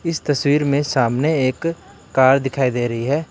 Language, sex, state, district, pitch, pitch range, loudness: Hindi, male, Karnataka, Bangalore, 140 Hz, 130-150 Hz, -18 LUFS